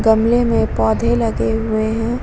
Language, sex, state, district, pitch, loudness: Hindi, female, Uttar Pradesh, Muzaffarnagar, 215 Hz, -17 LUFS